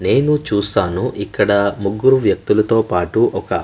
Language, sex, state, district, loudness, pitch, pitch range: Telugu, male, Andhra Pradesh, Manyam, -16 LUFS, 105 Hz, 100-125 Hz